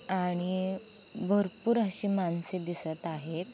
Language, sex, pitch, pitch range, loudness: Marathi, female, 185 Hz, 175-205 Hz, -32 LUFS